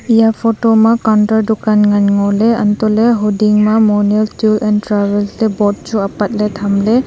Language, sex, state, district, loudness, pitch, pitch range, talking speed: Wancho, female, Arunachal Pradesh, Longding, -13 LUFS, 215 Hz, 205-220 Hz, 160 wpm